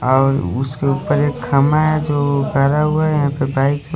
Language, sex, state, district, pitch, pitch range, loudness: Hindi, male, Odisha, Khordha, 140 Hz, 135-150 Hz, -17 LUFS